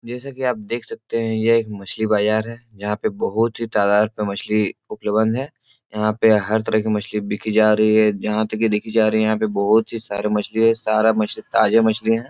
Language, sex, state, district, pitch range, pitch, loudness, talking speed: Hindi, male, Bihar, Jahanabad, 105-115 Hz, 110 Hz, -19 LUFS, 235 wpm